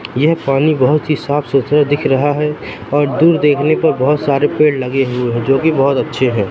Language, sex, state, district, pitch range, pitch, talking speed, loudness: Hindi, male, Madhya Pradesh, Katni, 135-150 Hz, 145 Hz, 210 wpm, -14 LUFS